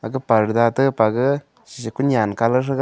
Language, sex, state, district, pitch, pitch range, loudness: Wancho, male, Arunachal Pradesh, Longding, 125 Hz, 115-135 Hz, -19 LUFS